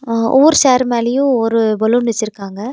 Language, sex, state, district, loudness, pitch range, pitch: Tamil, female, Tamil Nadu, Nilgiris, -13 LUFS, 225-255 Hz, 235 Hz